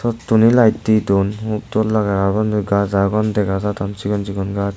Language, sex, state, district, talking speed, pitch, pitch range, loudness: Chakma, male, Tripura, West Tripura, 200 wpm, 105 Hz, 100-110 Hz, -17 LUFS